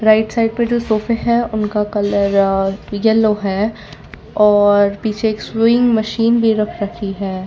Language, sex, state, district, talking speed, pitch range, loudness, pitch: Hindi, female, Gujarat, Valsad, 145 wpm, 205-225 Hz, -16 LUFS, 215 Hz